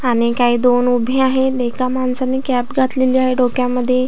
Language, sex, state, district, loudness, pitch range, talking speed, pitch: Marathi, female, Maharashtra, Aurangabad, -14 LUFS, 245-260 Hz, 160 wpm, 255 Hz